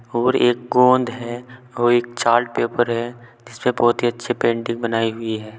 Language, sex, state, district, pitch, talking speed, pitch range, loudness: Hindi, male, Uttar Pradesh, Saharanpur, 120 Hz, 180 wpm, 115-120 Hz, -19 LUFS